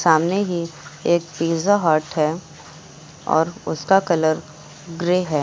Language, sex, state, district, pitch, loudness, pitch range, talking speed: Hindi, female, Uttar Pradesh, Lucknow, 165 Hz, -20 LUFS, 155-175 Hz, 120 wpm